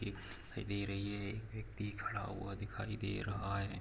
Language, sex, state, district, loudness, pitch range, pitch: Hindi, male, Jharkhand, Sahebganj, -42 LUFS, 100-105 Hz, 100 Hz